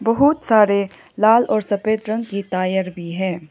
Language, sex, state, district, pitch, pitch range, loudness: Hindi, female, Arunachal Pradesh, Lower Dibang Valley, 205 Hz, 190-220 Hz, -18 LUFS